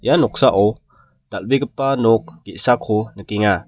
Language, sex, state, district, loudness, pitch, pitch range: Garo, male, Meghalaya, West Garo Hills, -18 LUFS, 110 Hz, 100-125 Hz